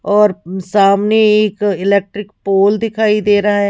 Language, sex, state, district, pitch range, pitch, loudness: Hindi, female, Punjab, Pathankot, 200-210 Hz, 205 Hz, -13 LUFS